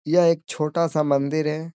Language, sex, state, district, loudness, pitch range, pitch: Hindi, male, Bihar, Gaya, -22 LUFS, 150-165 Hz, 155 Hz